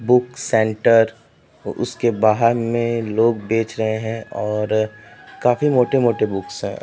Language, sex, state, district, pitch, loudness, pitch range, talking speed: Hindi, male, Uttar Pradesh, Etah, 115 Hz, -19 LUFS, 110-120 Hz, 115 wpm